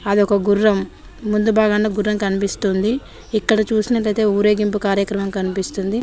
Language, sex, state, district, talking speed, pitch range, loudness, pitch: Telugu, female, Telangana, Mahabubabad, 100 wpm, 200-215 Hz, -18 LUFS, 210 Hz